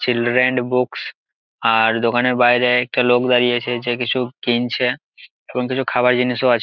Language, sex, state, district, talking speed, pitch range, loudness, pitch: Bengali, male, West Bengal, Jalpaiguri, 155 wpm, 120-125 Hz, -17 LUFS, 125 Hz